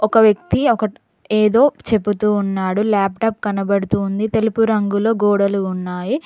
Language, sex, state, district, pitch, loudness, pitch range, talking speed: Telugu, female, Telangana, Mahabubabad, 210 Hz, -17 LUFS, 200-220 Hz, 115 wpm